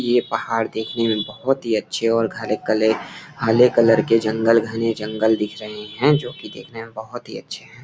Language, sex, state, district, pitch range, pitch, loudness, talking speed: Hindi, male, Bihar, Gopalganj, 110-120 Hz, 115 Hz, -19 LUFS, 205 wpm